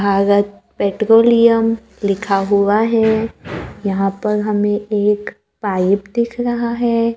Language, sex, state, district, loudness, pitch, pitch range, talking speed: Hindi, female, Maharashtra, Gondia, -16 LUFS, 210 Hz, 200-230 Hz, 110 wpm